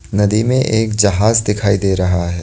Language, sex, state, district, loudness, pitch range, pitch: Hindi, male, Assam, Kamrup Metropolitan, -14 LUFS, 95-110 Hz, 105 Hz